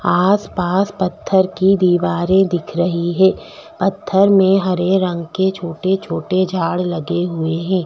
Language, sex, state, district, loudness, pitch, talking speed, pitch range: Hindi, female, Delhi, New Delhi, -17 LUFS, 185 Hz, 130 wpm, 175-190 Hz